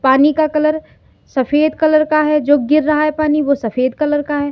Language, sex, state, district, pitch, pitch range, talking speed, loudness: Hindi, female, Uttar Pradesh, Lalitpur, 300 Hz, 285-305 Hz, 225 wpm, -15 LUFS